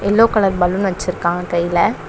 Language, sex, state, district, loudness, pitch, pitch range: Tamil, female, Tamil Nadu, Chennai, -17 LUFS, 180 Hz, 175-200 Hz